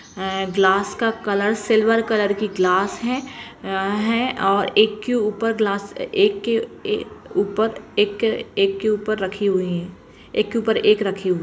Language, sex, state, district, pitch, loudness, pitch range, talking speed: Kumaoni, female, Uttarakhand, Uttarkashi, 210 Hz, -20 LUFS, 195-225 Hz, 165 wpm